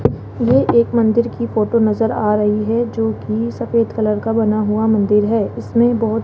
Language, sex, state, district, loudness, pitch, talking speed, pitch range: Hindi, female, Rajasthan, Jaipur, -16 LUFS, 220 Hz, 200 wpm, 210-230 Hz